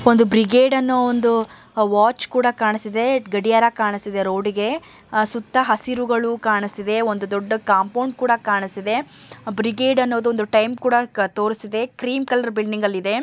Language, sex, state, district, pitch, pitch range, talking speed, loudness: Kannada, male, Karnataka, Mysore, 225 Hz, 210-245 Hz, 130 wpm, -19 LUFS